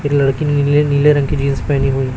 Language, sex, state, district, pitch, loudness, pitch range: Hindi, male, Chhattisgarh, Raipur, 140 Hz, -15 LUFS, 135-145 Hz